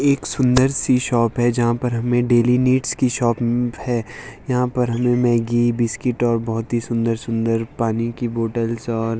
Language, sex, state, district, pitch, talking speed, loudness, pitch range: Hindi, male, Himachal Pradesh, Shimla, 120 Hz, 175 wpm, -19 LUFS, 115-125 Hz